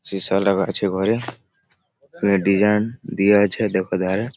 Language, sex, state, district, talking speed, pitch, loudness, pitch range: Bengali, male, West Bengal, Malda, 140 wpm, 100 Hz, -19 LUFS, 95-105 Hz